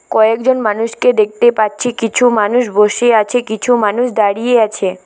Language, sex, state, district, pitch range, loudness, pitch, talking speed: Bengali, female, West Bengal, Alipurduar, 210-245 Hz, -13 LUFS, 225 Hz, 145 wpm